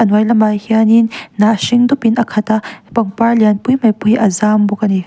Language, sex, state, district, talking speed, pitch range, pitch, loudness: Mizo, female, Mizoram, Aizawl, 250 wpm, 210-230 Hz, 220 Hz, -13 LUFS